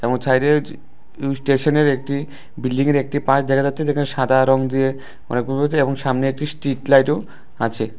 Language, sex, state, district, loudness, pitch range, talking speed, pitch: Bengali, male, Tripura, West Tripura, -19 LUFS, 130-145 Hz, 120 wpm, 135 Hz